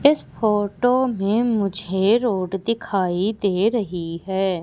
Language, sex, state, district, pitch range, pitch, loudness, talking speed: Hindi, female, Madhya Pradesh, Umaria, 190-230 Hz, 200 Hz, -21 LUFS, 115 wpm